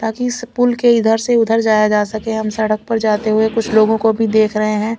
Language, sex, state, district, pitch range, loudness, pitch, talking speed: Hindi, female, Chandigarh, Chandigarh, 215-230 Hz, -15 LUFS, 220 Hz, 265 wpm